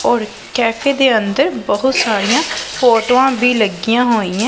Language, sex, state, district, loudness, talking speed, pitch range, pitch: Punjabi, female, Punjab, Pathankot, -14 LUFS, 135 wpm, 220-260 Hz, 240 Hz